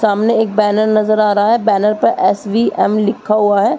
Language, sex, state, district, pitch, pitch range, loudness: Hindi, female, Uttar Pradesh, Muzaffarnagar, 215 Hz, 205-215 Hz, -13 LUFS